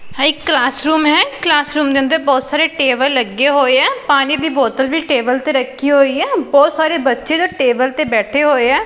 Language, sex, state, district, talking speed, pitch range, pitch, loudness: Punjabi, female, Punjab, Pathankot, 225 wpm, 265-305 Hz, 280 Hz, -14 LUFS